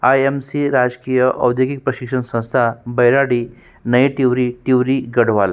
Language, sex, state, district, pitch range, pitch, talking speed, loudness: Hindi, male, Uttarakhand, Tehri Garhwal, 120-130 Hz, 125 Hz, 130 wpm, -17 LUFS